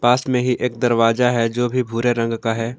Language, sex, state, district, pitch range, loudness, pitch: Hindi, male, Jharkhand, Palamu, 115-125 Hz, -19 LUFS, 120 Hz